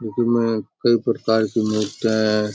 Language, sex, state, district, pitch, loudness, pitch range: Rajasthani, male, Rajasthan, Churu, 110 Hz, -20 LUFS, 110-115 Hz